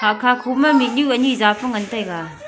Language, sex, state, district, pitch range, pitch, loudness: Wancho, female, Arunachal Pradesh, Longding, 210-260 Hz, 245 Hz, -17 LUFS